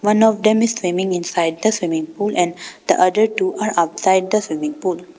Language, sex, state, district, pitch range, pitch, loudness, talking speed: English, female, Arunachal Pradesh, Papum Pare, 170-215 Hz, 185 Hz, -18 LUFS, 210 wpm